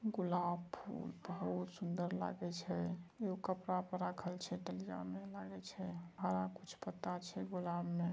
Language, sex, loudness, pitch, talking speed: Angika, male, -43 LUFS, 175 Hz, 135 wpm